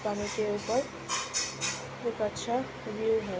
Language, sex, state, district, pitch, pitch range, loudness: Hindi, female, Uttar Pradesh, Ghazipur, 215 Hz, 210-235 Hz, -32 LUFS